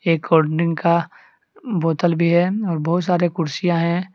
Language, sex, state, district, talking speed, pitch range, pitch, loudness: Hindi, male, Jharkhand, Deoghar, 160 wpm, 165-180 Hz, 170 Hz, -19 LUFS